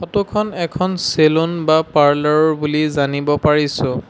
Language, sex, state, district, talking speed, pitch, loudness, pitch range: Assamese, male, Assam, Sonitpur, 115 wpm, 155 Hz, -16 LUFS, 145-170 Hz